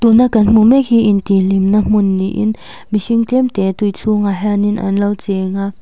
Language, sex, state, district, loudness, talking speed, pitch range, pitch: Mizo, female, Mizoram, Aizawl, -14 LUFS, 205 wpm, 195-220 Hz, 210 Hz